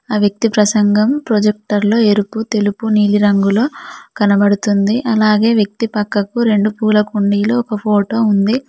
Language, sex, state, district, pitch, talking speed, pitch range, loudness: Telugu, female, Telangana, Mahabubabad, 210 Hz, 125 wpm, 205-225 Hz, -14 LUFS